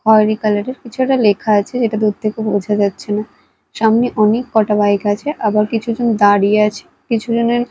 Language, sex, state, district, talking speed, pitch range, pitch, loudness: Bengali, female, Odisha, Malkangiri, 185 wpm, 210-230 Hz, 215 Hz, -15 LUFS